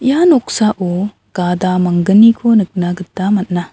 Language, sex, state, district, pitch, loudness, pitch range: Garo, female, Meghalaya, South Garo Hills, 195 Hz, -13 LUFS, 180-220 Hz